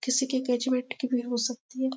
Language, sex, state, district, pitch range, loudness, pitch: Hindi, male, Chhattisgarh, Bastar, 245-260 Hz, -28 LUFS, 255 Hz